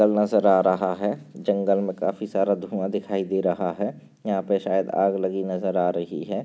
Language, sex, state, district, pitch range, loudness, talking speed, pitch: Hindi, male, Maharashtra, Nagpur, 95-100 Hz, -24 LUFS, 205 wpm, 95 Hz